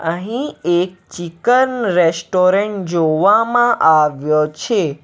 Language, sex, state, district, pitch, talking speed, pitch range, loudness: Gujarati, male, Gujarat, Valsad, 175 Hz, 85 wpm, 160-215 Hz, -15 LUFS